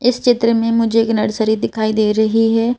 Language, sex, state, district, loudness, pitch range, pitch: Hindi, female, Madhya Pradesh, Bhopal, -15 LUFS, 220-230 Hz, 225 Hz